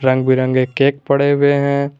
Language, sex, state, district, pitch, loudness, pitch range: Hindi, male, Jharkhand, Garhwa, 140 Hz, -15 LUFS, 130-140 Hz